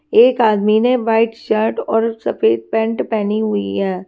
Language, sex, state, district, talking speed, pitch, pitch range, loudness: Hindi, female, Himachal Pradesh, Shimla, 160 wpm, 220 Hz, 210-225 Hz, -16 LUFS